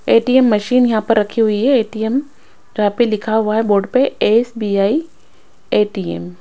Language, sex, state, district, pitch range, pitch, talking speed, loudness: Hindi, female, Odisha, Sambalpur, 210-250 Hz, 220 Hz, 170 wpm, -16 LUFS